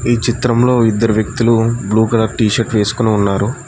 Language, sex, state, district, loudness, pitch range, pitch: Telugu, male, Telangana, Mahabubabad, -14 LUFS, 110-120 Hz, 115 Hz